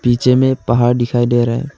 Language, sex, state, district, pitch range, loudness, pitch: Hindi, male, Arunachal Pradesh, Longding, 120-125 Hz, -14 LUFS, 120 Hz